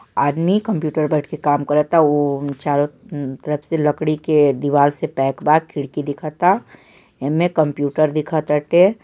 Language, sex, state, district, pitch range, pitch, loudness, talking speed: Bhojpuri, male, Bihar, Saran, 145-160 Hz, 150 Hz, -18 LUFS, 165 wpm